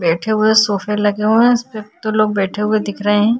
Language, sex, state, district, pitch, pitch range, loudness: Hindi, female, Uttar Pradesh, Jyotiba Phule Nagar, 215 Hz, 205-215 Hz, -15 LUFS